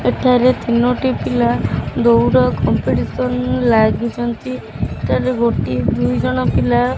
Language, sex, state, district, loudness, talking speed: Odia, female, Odisha, Khordha, -16 LUFS, 95 wpm